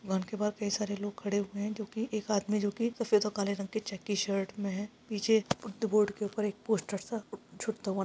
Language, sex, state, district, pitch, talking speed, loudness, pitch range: Hindi, female, Maharashtra, Aurangabad, 210 Hz, 230 wpm, -33 LUFS, 200-215 Hz